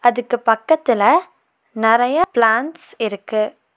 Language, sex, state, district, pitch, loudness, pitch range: Tamil, female, Tamil Nadu, Nilgiris, 240 Hz, -17 LUFS, 225-280 Hz